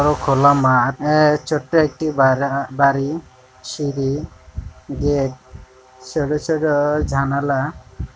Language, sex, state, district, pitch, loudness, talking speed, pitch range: Bengali, male, West Bengal, Jalpaiguri, 140 Hz, -18 LUFS, 80 wpm, 130-150 Hz